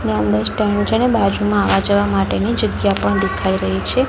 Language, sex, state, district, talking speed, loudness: Gujarati, female, Gujarat, Gandhinagar, 220 wpm, -17 LUFS